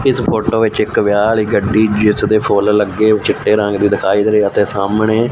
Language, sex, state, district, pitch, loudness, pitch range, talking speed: Punjabi, male, Punjab, Fazilka, 105 Hz, -13 LUFS, 105-110 Hz, 215 wpm